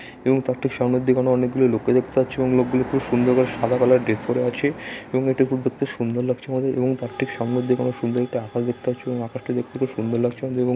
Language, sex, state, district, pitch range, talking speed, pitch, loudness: Bengali, male, West Bengal, Dakshin Dinajpur, 125-130 Hz, 250 wpm, 125 Hz, -22 LUFS